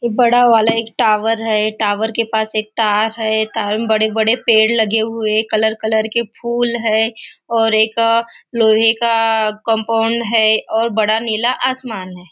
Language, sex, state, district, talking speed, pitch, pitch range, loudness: Hindi, female, Maharashtra, Nagpur, 170 wpm, 225 Hz, 220-230 Hz, -15 LUFS